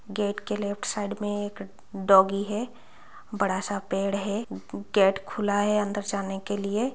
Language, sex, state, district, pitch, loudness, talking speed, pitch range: Hindi, female, Bihar, Bhagalpur, 205 Hz, -27 LUFS, 165 wpm, 195-210 Hz